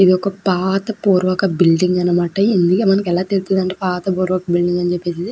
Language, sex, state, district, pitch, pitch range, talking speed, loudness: Telugu, female, Andhra Pradesh, Krishna, 185 Hz, 175-195 Hz, 160 wpm, -16 LUFS